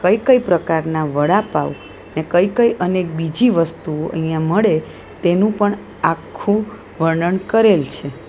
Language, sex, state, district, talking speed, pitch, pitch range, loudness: Gujarati, female, Gujarat, Valsad, 125 wpm, 175 Hz, 160-205 Hz, -17 LUFS